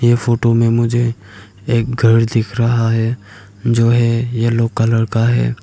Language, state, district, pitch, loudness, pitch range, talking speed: Hindi, Arunachal Pradesh, Papum Pare, 115 Hz, -15 LUFS, 115-120 Hz, 160 wpm